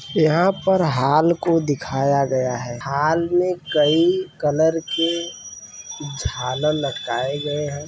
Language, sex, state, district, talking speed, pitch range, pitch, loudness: Hindi, male, Uttar Pradesh, Varanasi, 120 wpm, 135-165 Hz, 150 Hz, -20 LUFS